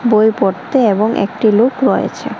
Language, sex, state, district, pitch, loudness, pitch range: Bengali, male, Tripura, West Tripura, 220 Hz, -14 LUFS, 215-245 Hz